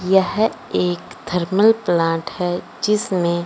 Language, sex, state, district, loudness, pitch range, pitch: Hindi, male, Punjab, Fazilka, -19 LUFS, 170-200 Hz, 180 Hz